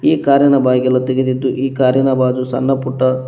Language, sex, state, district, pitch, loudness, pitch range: Kannada, male, Karnataka, Koppal, 130 Hz, -14 LUFS, 130-135 Hz